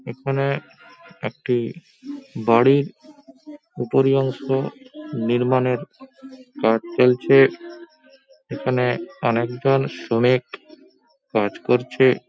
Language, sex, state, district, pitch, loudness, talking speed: Bengali, male, West Bengal, Paschim Medinipur, 135 Hz, -20 LUFS, 60 wpm